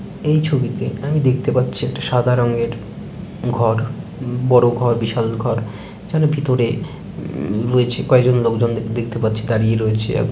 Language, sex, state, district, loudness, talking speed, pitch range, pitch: Bengali, male, West Bengal, Dakshin Dinajpur, -18 LUFS, 140 wpm, 115-135 Hz, 125 Hz